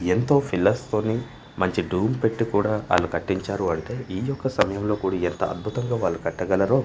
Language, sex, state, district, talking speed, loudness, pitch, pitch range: Telugu, male, Andhra Pradesh, Manyam, 140 wpm, -24 LUFS, 105 Hz, 95-120 Hz